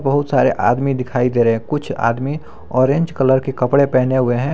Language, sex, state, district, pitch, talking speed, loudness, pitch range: Hindi, male, Jharkhand, Garhwa, 130 Hz, 210 wpm, -17 LUFS, 125-140 Hz